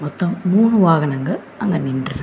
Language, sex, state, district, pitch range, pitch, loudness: Tamil, female, Tamil Nadu, Namakkal, 145-200 Hz, 175 Hz, -17 LUFS